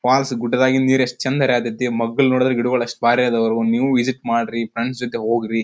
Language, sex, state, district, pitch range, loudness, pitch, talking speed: Kannada, male, Karnataka, Dharwad, 115-130 Hz, -18 LUFS, 125 Hz, 190 wpm